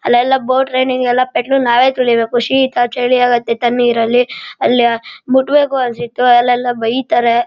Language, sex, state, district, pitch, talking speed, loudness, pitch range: Kannada, male, Karnataka, Shimoga, 245 Hz, 80 wpm, -13 LUFS, 240-260 Hz